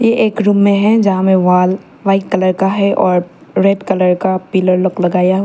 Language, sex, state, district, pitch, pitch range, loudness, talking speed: Hindi, female, Arunachal Pradesh, Papum Pare, 190 Hz, 185-200 Hz, -13 LUFS, 220 wpm